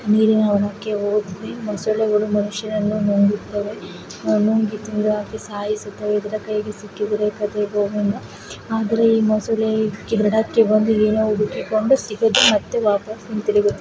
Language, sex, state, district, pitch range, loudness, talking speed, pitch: Kannada, female, Karnataka, Gulbarga, 210-215 Hz, -20 LUFS, 105 wpm, 210 Hz